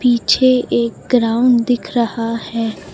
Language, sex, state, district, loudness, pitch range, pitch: Hindi, female, Uttar Pradesh, Lucknow, -16 LUFS, 230-245 Hz, 235 Hz